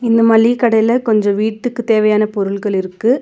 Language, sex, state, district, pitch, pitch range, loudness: Tamil, female, Tamil Nadu, Nilgiris, 220 Hz, 210-235 Hz, -14 LUFS